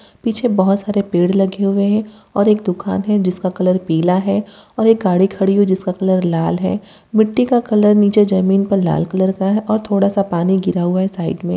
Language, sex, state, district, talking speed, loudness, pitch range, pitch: Hindi, female, Bihar, Jahanabad, 230 wpm, -16 LUFS, 185-210 Hz, 195 Hz